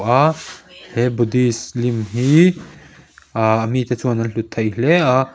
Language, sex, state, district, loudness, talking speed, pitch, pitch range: Mizo, male, Mizoram, Aizawl, -17 LUFS, 145 wpm, 125 Hz, 115-135 Hz